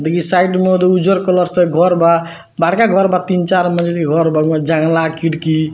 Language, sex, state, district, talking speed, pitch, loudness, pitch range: Bhojpuri, male, Bihar, Muzaffarpur, 220 wpm, 170 Hz, -13 LUFS, 165-185 Hz